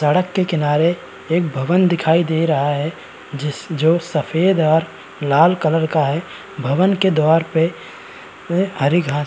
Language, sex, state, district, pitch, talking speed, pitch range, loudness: Hindi, male, Uttar Pradesh, Varanasi, 160 Hz, 140 wpm, 150-175 Hz, -17 LUFS